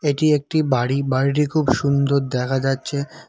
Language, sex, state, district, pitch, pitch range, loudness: Bengali, male, West Bengal, Cooch Behar, 140 Hz, 135-150 Hz, -20 LUFS